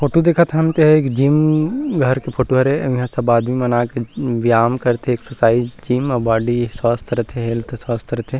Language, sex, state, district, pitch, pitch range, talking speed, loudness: Chhattisgarhi, male, Chhattisgarh, Rajnandgaon, 125 Hz, 120-135 Hz, 195 wpm, -17 LUFS